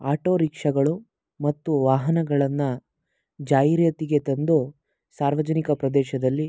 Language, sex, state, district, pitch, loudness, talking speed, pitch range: Kannada, male, Karnataka, Mysore, 145 Hz, -23 LUFS, 75 wpm, 140-160 Hz